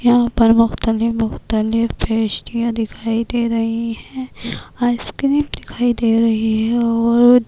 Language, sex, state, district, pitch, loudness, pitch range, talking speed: Urdu, female, Bihar, Kishanganj, 230 Hz, -17 LUFS, 225-240 Hz, 130 wpm